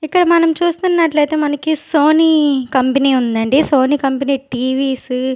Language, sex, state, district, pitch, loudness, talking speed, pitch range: Telugu, female, Andhra Pradesh, Sri Satya Sai, 290 Hz, -14 LUFS, 125 wpm, 265-315 Hz